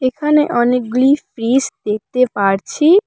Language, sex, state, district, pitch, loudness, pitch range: Bengali, female, West Bengal, Cooch Behar, 255 Hz, -15 LUFS, 230-285 Hz